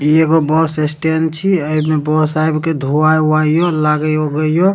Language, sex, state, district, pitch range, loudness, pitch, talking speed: Maithili, male, Bihar, Supaul, 155-160 Hz, -14 LUFS, 155 Hz, 200 wpm